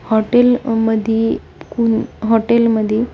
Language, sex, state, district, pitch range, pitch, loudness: Marathi, female, Maharashtra, Pune, 220-235 Hz, 225 Hz, -15 LUFS